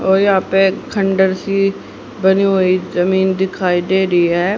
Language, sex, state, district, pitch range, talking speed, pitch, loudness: Hindi, female, Haryana, Charkhi Dadri, 185-195 Hz, 155 wpm, 190 Hz, -15 LUFS